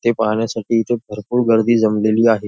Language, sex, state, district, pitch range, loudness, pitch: Marathi, male, Maharashtra, Nagpur, 110-115 Hz, -17 LUFS, 115 Hz